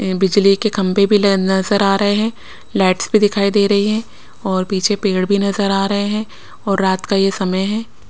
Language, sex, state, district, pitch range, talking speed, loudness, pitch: Hindi, female, Maharashtra, Washim, 195-205 Hz, 205 wpm, -16 LUFS, 200 Hz